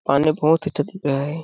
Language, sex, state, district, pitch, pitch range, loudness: Hindi, male, Chhattisgarh, Balrampur, 155 Hz, 140-160 Hz, -20 LUFS